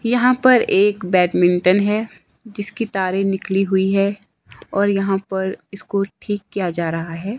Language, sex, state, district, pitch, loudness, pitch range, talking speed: Hindi, male, Himachal Pradesh, Shimla, 195 Hz, -18 LUFS, 185-205 Hz, 155 wpm